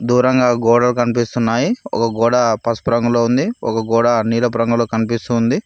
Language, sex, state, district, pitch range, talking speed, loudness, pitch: Telugu, male, Telangana, Mahabubabad, 115-120 Hz, 150 wpm, -16 LUFS, 120 Hz